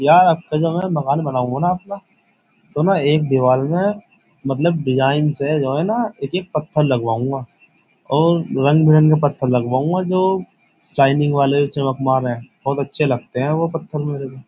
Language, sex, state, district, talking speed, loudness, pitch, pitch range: Hindi, male, Uttar Pradesh, Jyotiba Phule Nagar, 175 wpm, -18 LUFS, 150 Hz, 135-170 Hz